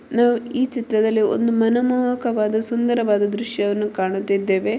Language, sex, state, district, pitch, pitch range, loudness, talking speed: Kannada, female, Karnataka, Mysore, 225 Hz, 210-240 Hz, -20 LUFS, 115 wpm